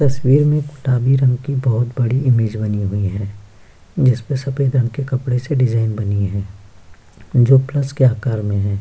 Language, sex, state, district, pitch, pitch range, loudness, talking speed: Hindi, male, Bihar, Kishanganj, 120 Hz, 100-135 Hz, -17 LUFS, 185 wpm